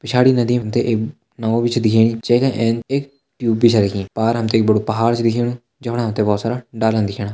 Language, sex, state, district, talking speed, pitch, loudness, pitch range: Hindi, male, Uttarakhand, Tehri Garhwal, 235 wpm, 115 Hz, -18 LUFS, 110-120 Hz